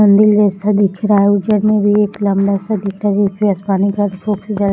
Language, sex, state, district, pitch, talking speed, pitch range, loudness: Hindi, female, Bihar, Samastipur, 205 Hz, 165 wpm, 200-210 Hz, -14 LUFS